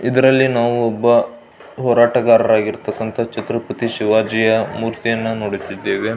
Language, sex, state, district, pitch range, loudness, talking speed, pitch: Kannada, male, Karnataka, Belgaum, 110-120 Hz, -17 LUFS, 80 wpm, 115 Hz